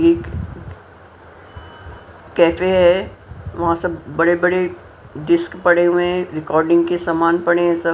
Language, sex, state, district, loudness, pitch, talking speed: Hindi, female, Punjab, Pathankot, -17 LUFS, 165 Hz, 130 wpm